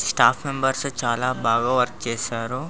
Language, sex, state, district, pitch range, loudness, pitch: Telugu, male, Telangana, Nalgonda, 115-130 Hz, -22 LUFS, 125 Hz